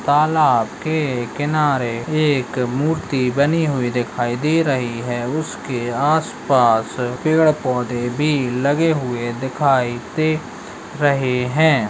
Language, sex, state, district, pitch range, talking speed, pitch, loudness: Hindi, male, Uttarakhand, Tehri Garhwal, 125-155 Hz, 105 wpm, 135 Hz, -19 LUFS